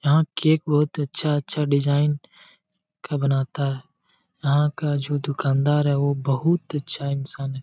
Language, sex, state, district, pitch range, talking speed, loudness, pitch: Hindi, male, Jharkhand, Jamtara, 140-150 Hz, 150 wpm, -23 LUFS, 145 Hz